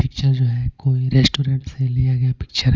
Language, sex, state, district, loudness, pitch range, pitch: Hindi, male, Punjab, Pathankot, -19 LUFS, 125-135 Hz, 130 Hz